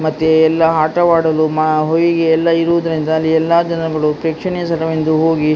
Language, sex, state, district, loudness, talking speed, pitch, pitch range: Kannada, female, Karnataka, Dakshina Kannada, -14 LUFS, 140 wpm, 160 Hz, 155-165 Hz